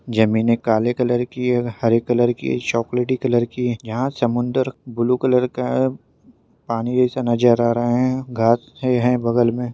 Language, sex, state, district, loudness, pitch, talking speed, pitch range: Hindi, male, Maharashtra, Chandrapur, -19 LUFS, 120 Hz, 180 wpm, 120-125 Hz